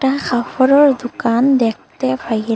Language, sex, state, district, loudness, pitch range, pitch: Bengali, female, Assam, Hailakandi, -15 LUFS, 230-265 Hz, 250 Hz